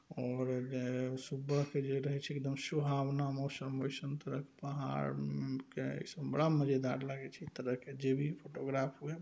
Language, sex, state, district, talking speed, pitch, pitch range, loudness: Maithili, male, Bihar, Saharsa, 165 wpm, 135 Hz, 130-140 Hz, -38 LUFS